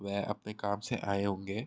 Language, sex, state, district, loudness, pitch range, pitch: Hindi, male, Uttar Pradesh, Hamirpur, -35 LUFS, 100-105 Hz, 100 Hz